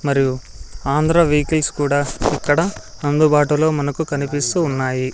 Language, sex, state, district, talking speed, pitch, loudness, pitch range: Telugu, male, Andhra Pradesh, Sri Satya Sai, 105 wpm, 145 Hz, -18 LUFS, 140-155 Hz